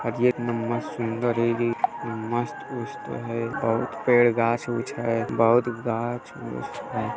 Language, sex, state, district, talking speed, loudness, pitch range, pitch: Hindi, male, Bihar, Madhepura, 90 wpm, -25 LUFS, 115-120 Hz, 120 Hz